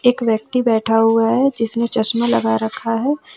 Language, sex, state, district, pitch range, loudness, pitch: Hindi, female, Jharkhand, Ranchi, 225-245 Hz, -17 LUFS, 230 Hz